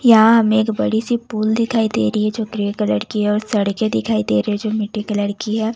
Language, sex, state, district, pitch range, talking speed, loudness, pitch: Hindi, female, Bihar, West Champaran, 205-220 Hz, 260 wpm, -18 LUFS, 215 Hz